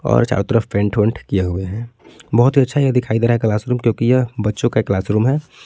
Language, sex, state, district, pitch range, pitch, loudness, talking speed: Hindi, male, Jharkhand, Palamu, 105-125 Hz, 115 Hz, -17 LUFS, 245 wpm